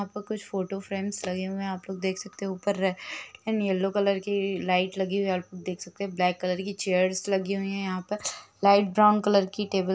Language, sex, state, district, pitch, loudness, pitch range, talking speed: Hindi, female, Chhattisgarh, Rajnandgaon, 195 Hz, -27 LUFS, 185-200 Hz, 255 wpm